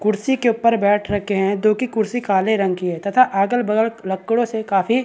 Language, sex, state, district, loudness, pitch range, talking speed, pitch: Hindi, male, Chhattisgarh, Bastar, -19 LUFS, 195-230 Hz, 240 wpm, 215 Hz